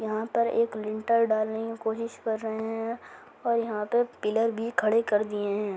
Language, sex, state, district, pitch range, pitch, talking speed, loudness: Hindi, female, Rajasthan, Churu, 215-230 Hz, 225 Hz, 195 wpm, -28 LUFS